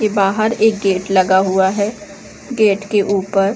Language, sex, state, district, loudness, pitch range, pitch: Hindi, female, Chhattisgarh, Bilaspur, -15 LUFS, 195-210 Hz, 200 Hz